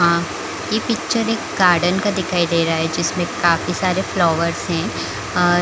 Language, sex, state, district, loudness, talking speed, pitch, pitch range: Hindi, female, Chhattisgarh, Bilaspur, -19 LUFS, 160 wpm, 175 Hz, 170-190 Hz